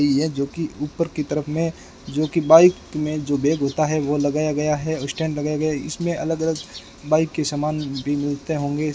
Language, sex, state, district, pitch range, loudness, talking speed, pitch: Hindi, male, Rajasthan, Bikaner, 145-160 Hz, -21 LUFS, 215 wpm, 150 Hz